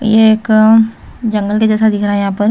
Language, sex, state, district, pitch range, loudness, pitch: Hindi, female, Chhattisgarh, Raipur, 210-220 Hz, -12 LUFS, 215 Hz